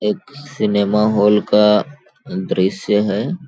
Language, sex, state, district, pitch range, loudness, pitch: Hindi, male, Chhattisgarh, Balrampur, 105-110 Hz, -16 LUFS, 105 Hz